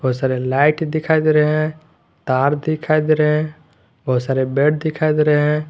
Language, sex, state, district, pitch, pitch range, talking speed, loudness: Hindi, male, Jharkhand, Garhwa, 150 Hz, 135-155 Hz, 190 wpm, -17 LUFS